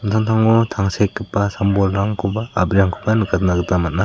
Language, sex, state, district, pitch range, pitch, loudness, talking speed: Garo, male, Meghalaya, South Garo Hills, 95-110 Hz, 100 Hz, -18 LUFS, 105 wpm